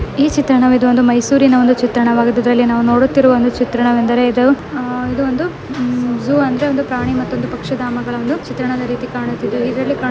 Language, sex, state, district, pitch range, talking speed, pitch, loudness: Kannada, female, Karnataka, Mysore, 245-265 Hz, 155 wpm, 250 Hz, -15 LUFS